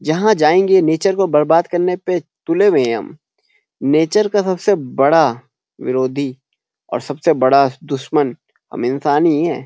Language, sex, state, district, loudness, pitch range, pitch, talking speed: Hindi, male, Uttarakhand, Uttarkashi, -16 LUFS, 140-195 Hz, 165 Hz, 150 wpm